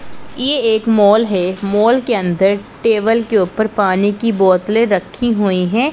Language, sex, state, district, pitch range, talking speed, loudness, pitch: Hindi, female, Punjab, Pathankot, 195-230 Hz, 160 wpm, -14 LUFS, 210 Hz